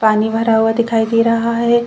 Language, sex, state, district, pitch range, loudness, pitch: Hindi, female, Chhattisgarh, Bilaspur, 225-230 Hz, -15 LUFS, 230 Hz